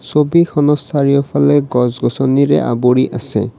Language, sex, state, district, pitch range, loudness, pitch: Assamese, male, Assam, Kamrup Metropolitan, 125-145 Hz, -13 LUFS, 140 Hz